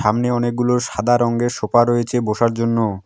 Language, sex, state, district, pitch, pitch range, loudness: Bengali, male, West Bengal, Alipurduar, 120 Hz, 115-120 Hz, -18 LUFS